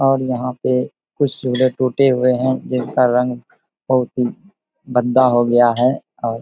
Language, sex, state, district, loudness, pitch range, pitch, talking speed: Hindi, male, Bihar, Bhagalpur, -17 LUFS, 125-130 Hz, 125 Hz, 160 wpm